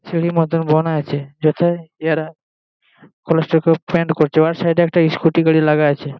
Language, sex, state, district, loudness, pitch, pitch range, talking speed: Bengali, male, West Bengal, Jalpaiguri, -16 LUFS, 160 Hz, 155-165 Hz, 135 wpm